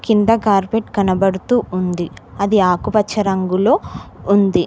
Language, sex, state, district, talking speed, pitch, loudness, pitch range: Telugu, female, Telangana, Mahabubabad, 105 wpm, 200 Hz, -16 LUFS, 185-215 Hz